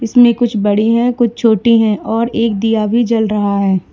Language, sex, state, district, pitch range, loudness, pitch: Hindi, female, Uttar Pradesh, Lalitpur, 210-235 Hz, -13 LUFS, 225 Hz